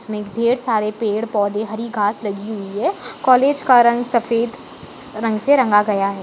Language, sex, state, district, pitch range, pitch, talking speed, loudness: Hindi, female, Maharashtra, Aurangabad, 210-240 Hz, 220 Hz, 175 wpm, -18 LUFS